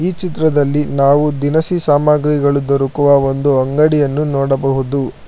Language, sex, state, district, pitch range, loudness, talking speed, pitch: Kannada, male, Karnataka, Bangalore, 140-150 Hz, -14 LUFS, 90 wpm, 145 Hz